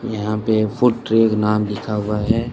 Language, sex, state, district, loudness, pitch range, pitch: Hindi, male, Rajasthan, Bikaner, -19 LUFS, 105-115 Hz, 110 Hz